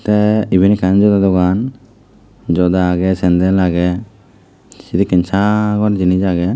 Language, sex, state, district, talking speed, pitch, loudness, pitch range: Chakma, male, Tripura, Dhalai, 120 wpm, 95 Hz, -14 LUFS, 90-105 Hz